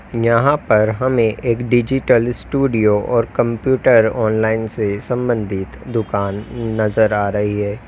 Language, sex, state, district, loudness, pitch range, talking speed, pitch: Hindi, male, Uttar Pradesh, Lalitpur, -17 LUFS, 105-120 Hz, 120 wpm, 115 Hz